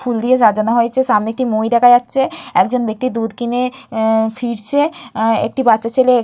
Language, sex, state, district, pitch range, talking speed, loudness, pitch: Bengali, female, West Bengal, Purulia, 225-255 Hz, 175 wpm, -15 LUFS, 240 Hz